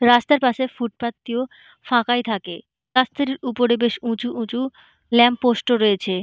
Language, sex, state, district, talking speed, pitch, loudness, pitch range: Bengali, female, West Bengal, Malda, 145 wpm, 240 Hz, -20 LUFS, 235-250 Hz